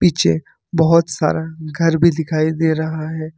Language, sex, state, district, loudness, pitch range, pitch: Hindi, male, Jharkhand, Ranchi, -17 LUFS, 155-165 Hz, 160 Hz